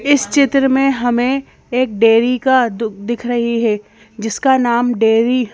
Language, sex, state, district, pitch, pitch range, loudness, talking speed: Hindi, female, Madhya Pradesh, Bhopal, 240 Hz, 225-260 Hz, -15 LUFS, 160 wpm